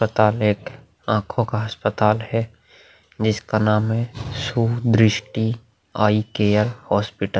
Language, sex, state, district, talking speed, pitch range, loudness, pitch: Hindi, male, Bihar, Vaishali, 120 wpm, 105-115 Hz, -21 LUFS, 110 Hz